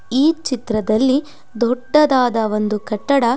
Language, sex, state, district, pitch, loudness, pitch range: Kannada, female, Karnataka, Mysore, 245 Hz, -17 LUFS, 220-275 Hz